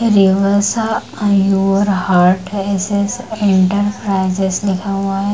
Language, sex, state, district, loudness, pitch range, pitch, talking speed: Hindi, female, Bihar, Purnia, -15 LUFS, 195-205 Hz, 195 Hz, 100 wpm